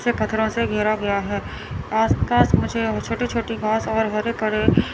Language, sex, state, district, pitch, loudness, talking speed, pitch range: Hindi, male, Chandigarh, Chandigarh, 220 Hz, -21 LUFS, 170 wpm, 215-230 Hz